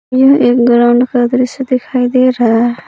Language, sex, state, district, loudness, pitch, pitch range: Hindi, female, Jharkhand, Palamu, -11 LUFS, 250 Hz, 240-255 Hz